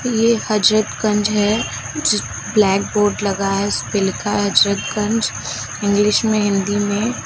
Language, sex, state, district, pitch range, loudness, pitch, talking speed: Hindi, female, Uttar Pradesh, Lucknow, 200-215 Hz, -17 LUFS, 210 Hz, 130 wpm